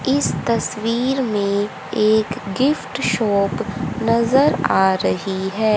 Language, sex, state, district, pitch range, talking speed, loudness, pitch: Hindi, female, Haryana, Charkhi Dadri, 200-240 Hz, 105 wpm, -19 LUFS, 215 Hz